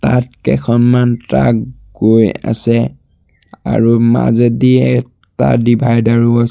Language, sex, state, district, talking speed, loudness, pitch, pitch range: Assamese, male, Assam, Sonitpur, 100 wpm, -12 LUFS, 115 Hz, 110-120 Hz